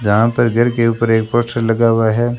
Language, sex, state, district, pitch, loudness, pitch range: Hindi, male, Rajasthan, Bikaner, 115 Hz, -15 LUFS, 115-120 Hz